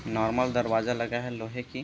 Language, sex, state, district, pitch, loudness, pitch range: Hindi, male, Chhattisgarh, Korba, 120 Hz, -29 LUFS, 110-125 Hz